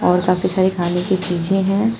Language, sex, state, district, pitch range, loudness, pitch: Hindi, female, Uttar Pradesh, Shamli, 180-195 Hz, -18 LUFS, 185 Hz